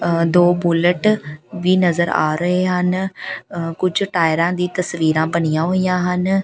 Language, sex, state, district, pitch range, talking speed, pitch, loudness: Punjabi, female, Punjab, Pathankot, 165-185 Hz, 150 wpm, 175 Hz, -18 LUFS